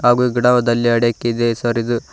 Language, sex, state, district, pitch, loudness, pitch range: Kannada, male, Karnataka, Koppal, 120 Hz, -16 LUFS, 115-120 Hz